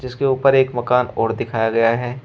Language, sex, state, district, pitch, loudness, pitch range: Hindi, male, Uttar Pradesh, Shamli, 125 Hz, -18 LUFS, 115-130 Hz